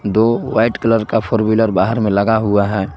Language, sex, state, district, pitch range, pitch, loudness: Hindi, male, Jharkhand, Garhwa, 105-115 Hz, 110 Hz, -15 LUFS